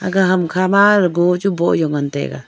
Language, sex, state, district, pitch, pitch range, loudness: Wancho, female, Arunachal Pradesh, Longding, 180 Hz, 170-190 Hz, -15 LUFS